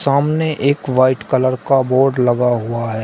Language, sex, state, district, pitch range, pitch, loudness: Hindi, male, Uttar Pradesh, Shamli, 125-140 Hz, 130 Hz, -16 LUFS